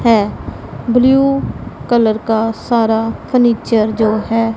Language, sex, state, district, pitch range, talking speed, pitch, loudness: Hindi, female, Punjab, Pathankot, 220-240 Hz, 105 wpm, 225 Hz, -14 LUFS